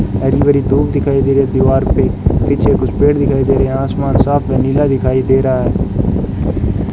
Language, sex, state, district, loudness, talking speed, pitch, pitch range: Hindi, male, Rajasthan, Bikaner, -13 LUFS, 180 wpm, 135 Hz, 130-140 Hz